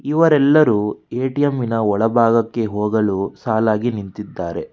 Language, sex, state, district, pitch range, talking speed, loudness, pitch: Kannada, male, Karnataka, Bangalore, 105-130 Hz, 90 wpm, -18 LUFS, 115 Hz